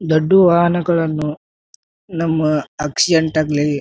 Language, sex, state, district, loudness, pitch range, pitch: Kannada, male, Karnataka, Bijapur, -16 LUFS, 150-170 Hz, 160 Hz